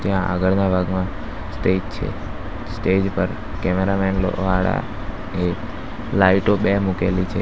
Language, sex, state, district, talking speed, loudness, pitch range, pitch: Gujarati, male, Gujarat, Valsad, 95 wpm, -21 LUFS, 90-100 Hz, 95 Hz